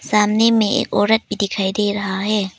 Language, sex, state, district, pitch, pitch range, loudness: Hindi, female, Arunachal Pradesh, Papum Pare, 210 Hz, 200-215 Hz, -17 LUFS